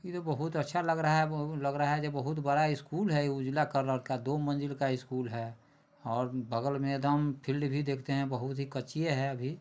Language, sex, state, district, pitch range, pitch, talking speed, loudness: Hindi, male, Bihar, Sitamarhi, 135-150 Hz, 140 Hz, 230 wpm, -32 LUFS